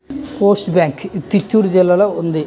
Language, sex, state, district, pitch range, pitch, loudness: Telugu, male, Andhra Pradesh, Chittoor, 180-210 Hz, 195 Hz, -14 LUFS